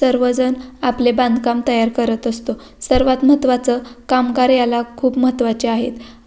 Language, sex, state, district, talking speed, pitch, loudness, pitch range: Marathi, female, Maharashtra, Pune, 125 wpm, 250 Hz, -17 LUFS, 235-255 Hz